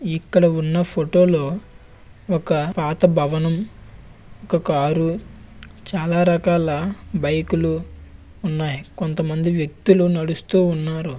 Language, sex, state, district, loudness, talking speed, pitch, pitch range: Telugu, male, Andhra Pradesh, Visakhapatnam, -19 LUFS, 125 wpm, 165 Hz, 155-180 Hz